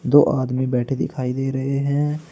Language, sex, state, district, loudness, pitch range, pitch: Hindi, male, Uttar Pradesh, Saharanpur, -21 LUFS, 130-145 Hz, 135 Hz